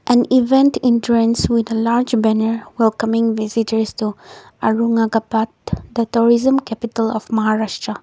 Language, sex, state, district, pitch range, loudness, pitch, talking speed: English, female, Nagaland, Kohima, 220-235 Hz, -17 LUFS, 230 Hz, 125 wpm